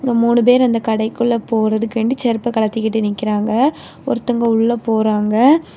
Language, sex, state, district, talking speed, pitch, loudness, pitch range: Tamil, female, Tamil Nadu, Kanyakumari, 125 wpm, 230 Hz, -16 LUFS, 220-240 Hz